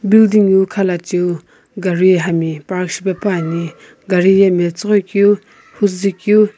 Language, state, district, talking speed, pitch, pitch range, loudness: Sumi, Nagaland, Kohima, 120 wpm, 190 Hz, 180-205 Hz, -15 LUFS